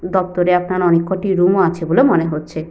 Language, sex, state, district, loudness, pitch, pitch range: Bengali, female, West Bengal, Paschim Medinipur, -16 LUFS, 180 Hz, 165-185 Hz